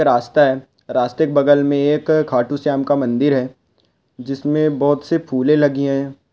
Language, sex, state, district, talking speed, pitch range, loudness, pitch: Hindi, male, Rajasthan, Churu, 170 wpm, 130-145 Hz, -17 LUFS, 140 Hz